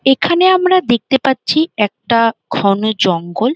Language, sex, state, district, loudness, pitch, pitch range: Bengali, female, West Bengal, Jhargram, -14 LUFS, 245 Hz, 215-315 Hz